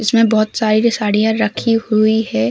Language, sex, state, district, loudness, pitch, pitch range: Hindi, female, Uttar Pradesh, Hamirpur, -15 LUFS, 220 Hz, 215-225 Hz